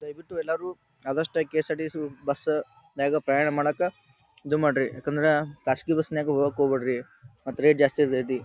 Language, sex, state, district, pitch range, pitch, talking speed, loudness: Kannada, male, Karnataka, Dharwad, 135-155 Hz, 145 Hz, 155 wpm, -26 LUFS